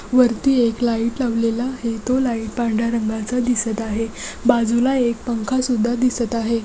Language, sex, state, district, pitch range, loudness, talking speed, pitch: Marathi, female, Maharashtra, Dhule, 230-250 Hz, -20 LUFS, 155 wpm, 235 Hz